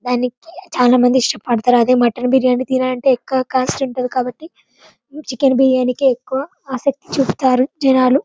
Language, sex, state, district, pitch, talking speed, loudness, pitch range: Telugu, female, Telangana, Karimnagar, 255 Hz, 130 wpm, -16 LUFS, 250-270 Hz